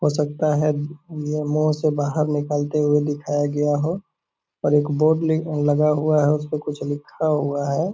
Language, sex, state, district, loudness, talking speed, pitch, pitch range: Hindi, male, Bihar, Purnia, -21 LUFS, 175 wpm, 150 Hz, 145-155 Hz